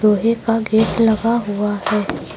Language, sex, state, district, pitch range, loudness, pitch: Hindi, female, Uttar Pradesh, Lucknow, 210-225 Hz, -17 LUFS, 220 Hz